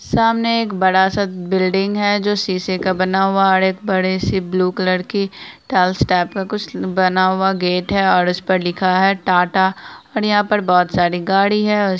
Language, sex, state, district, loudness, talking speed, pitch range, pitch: Hindi, female, Bihar, Araria, -17 LUFS, 200 wpm, 185-200 Hz, 190 Hz